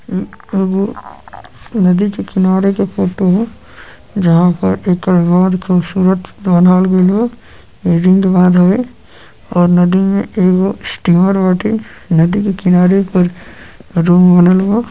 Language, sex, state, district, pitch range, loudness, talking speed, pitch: Bhojpuri, male, Uttar Pradesh, Gorakhpur, 180-195 Hz, -12 LUFS, 110 wpm, 185 Hz